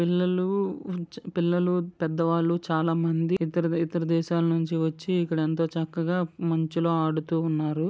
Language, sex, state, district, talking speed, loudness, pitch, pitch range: Telugu, male, Andhra Pradesh, Srikakulam, 120 wpm, -26 LUFS, 165 Hz, 165-175 Hz